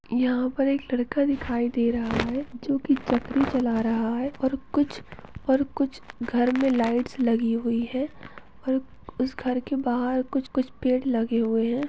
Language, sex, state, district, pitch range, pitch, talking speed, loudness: Hindi, female, Chhattisgarh, Bastar, 240-270 Hz, 255 Hz, 170 wpm, -26 LUFS